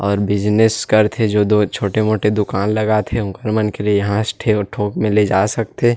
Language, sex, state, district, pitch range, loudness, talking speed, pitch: Chhattisgarhi, male, Chhattisgarh, Rajnandgaon, 105-110 Hz, -17 LUFS, 210 wpm, 105 Hz